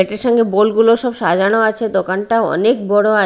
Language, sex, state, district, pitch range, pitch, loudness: Bengali, female, Odisha, Malkangiri, 205-230 Hz, 220 Hz, -14 LUFS